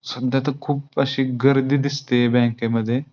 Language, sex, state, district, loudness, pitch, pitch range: Marathi, male, Maharashtra, Pune, -20 LUFS, 135 Hz, 125-140 Hz